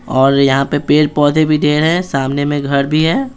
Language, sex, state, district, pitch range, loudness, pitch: Hindi, male, Bihar, Patna, 140-155 Hz, -13 LUFS, 145 Hz